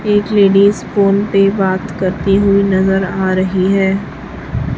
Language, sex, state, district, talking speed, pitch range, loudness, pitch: Hindi, female, Chhattisgarh, Raipur, 140 wpm, 190-200 Hz, -13 LUFS, 195 Hz